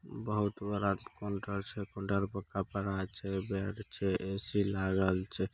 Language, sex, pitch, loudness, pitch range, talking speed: Angika, male, 100 Hz, -36 LUFS, 95-100 Hz, 140 wpm